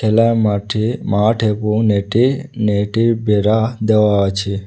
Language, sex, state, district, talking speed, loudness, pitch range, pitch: Bengali, male, Tripura, West Tripura, 130 wpm, -16 LUFS, 105-115 Hz, 110 Hz